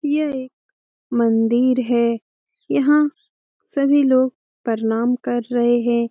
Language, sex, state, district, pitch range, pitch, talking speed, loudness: Hindi, female, Bihar, Jamui, 235-280 Hz, 250 Hz, 120 wpm, -19 LUFS